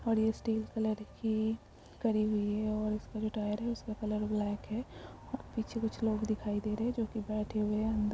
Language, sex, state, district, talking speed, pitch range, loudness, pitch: Hindi, female, Bihar, Darbhanga, 220 wpm, 215-220 Hz, -35 LUFS, 215 Hz